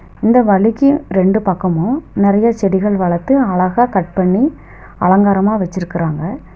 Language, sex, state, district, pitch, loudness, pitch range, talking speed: Tamil, female, Tamil Nadu, Nilgiris, 195 Hz, -14 LUFS, 185-230 Hz, 110 wpm